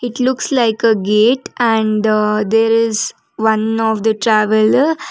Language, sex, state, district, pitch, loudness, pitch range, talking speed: English, female, Karnataka, Bangalore, 225 Hz, -14 LUFS, 215-235 Hz, 140 wpm